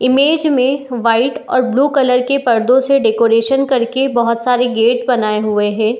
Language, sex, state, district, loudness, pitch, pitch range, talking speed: Hindi, female, Uttar Pradesh, Etah, -14 LUFS, 250 Hz, 230-270 Hz, 180 wpm